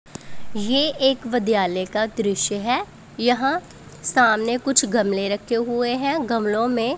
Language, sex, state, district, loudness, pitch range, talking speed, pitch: Hindi, female, Punjab, Pathankot, -21 LUFS, 210-255 Hz, 130 wpm, 235 Hz